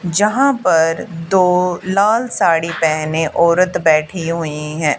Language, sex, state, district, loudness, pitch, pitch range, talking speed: Hindi, female, Haryana, Charkhi Dadri, -15 LUFS, 170 Hz, 160-185 Hz, 120 wpm